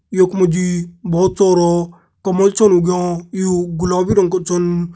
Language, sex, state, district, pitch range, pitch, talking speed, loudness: Garhwali, male, Uttarakhand, Tehri Garhwal, 175-185 Hz, 180 Hz, 145 wpm, -15 LUFS